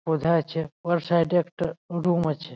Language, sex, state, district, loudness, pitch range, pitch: Bengali, male, West Bengal, Jalpaiguri, -25 LUFS, 160-175 Hz, 170 Hz